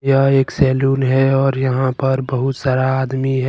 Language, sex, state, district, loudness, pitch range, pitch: Hindi, male, Jharkhand, Ranchi, -16 LUFS, 130-135 Hz, 135 Hz